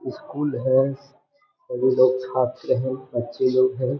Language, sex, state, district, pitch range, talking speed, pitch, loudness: Hindi, male, Bihar, Jamui, 130-140 Hz, 135 wpm, 130 Hz, -22 LUFS